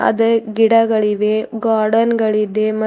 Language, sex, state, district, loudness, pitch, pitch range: Kannada, female, Karnataka, Bidar, -15 LUFS, 220 Hz, 215-225 Hz